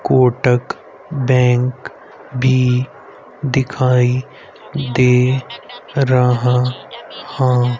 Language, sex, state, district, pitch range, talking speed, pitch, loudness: Hindi, male, Haryana, Rohtak, 125-130 Hz, 55 wpm, 125 Hz, -16 LUFS